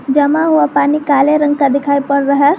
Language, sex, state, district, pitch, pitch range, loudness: Hindi, female, Jharkhand, Garhwa, 285 Hz, 280-295 Hz, -12 LUFS